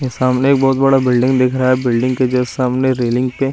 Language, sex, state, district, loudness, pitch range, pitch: Hindi, male, Chandigarh, Chandigarh, -15 LUFS, 125-130 Hz, 130 Hz